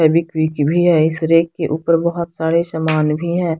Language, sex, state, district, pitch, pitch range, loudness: Hindi, female, Bihar, Katihar, 165 Hz, 160-170 Hz, -16 LUFS